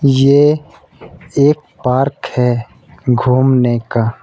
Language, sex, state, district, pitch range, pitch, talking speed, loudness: Hindi, male, Uttar Pradesh, Saharanpur, 125-145 Hz, 130 Hz, 85 wpm, -14 LUFS